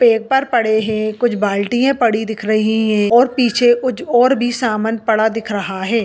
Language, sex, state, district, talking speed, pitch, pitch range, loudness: Hindi, female, Andhra Pradesh, Anantapur, 190 wpm, 225 Hz, 215-245 Hz, -15 LUFS